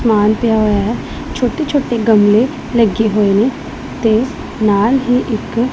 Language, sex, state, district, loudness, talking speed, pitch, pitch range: Punjabi, female, Punjab, Pathankot, -14 LUFS, 145 wpm, 225 Hz, 215-245 Hz